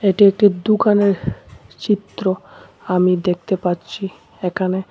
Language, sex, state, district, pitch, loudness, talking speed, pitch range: Bengali, male, Tripura, West Tripura, 185 Hz, -18 LUFS, 100 wpm, 180-200 Hz